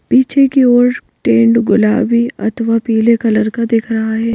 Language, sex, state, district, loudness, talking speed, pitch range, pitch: Hindi, female, Madhya Pradesh, Bhopal, -12 LUFS, 180 wpm, 220-240 Hz, 230 Hz